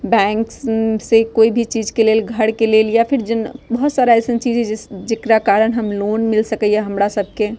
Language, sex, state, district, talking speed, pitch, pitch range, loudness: Bajjika, female, Bihar, Vaishali, 235 wpm, 225 Hz, 215-230 Hz, -16 LUFS